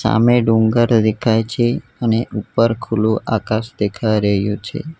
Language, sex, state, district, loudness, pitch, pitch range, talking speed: Gujarati, male, Gujarat, Valsad, -17 LUFS, 115 Hz, 110-120 Hz, 130 wpm